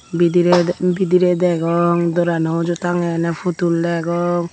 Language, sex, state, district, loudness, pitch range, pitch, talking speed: Chakma, female, Tripura, Unakoti, -17 LUFS, 170-175 Hz, 175 Hz, 120 wpm